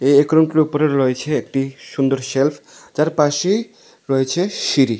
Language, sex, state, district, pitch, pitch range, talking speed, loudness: Bengali, male, Tripura, West Tripura, 145 Hz, 135-155 Hz, 110 wpm, -18 LUFS